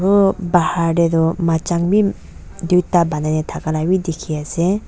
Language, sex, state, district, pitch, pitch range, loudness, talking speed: Nagamese, female, Nagaland, Dimapur, 170 Hz, 160-180 Hz, -17 LUFS, 170 wpm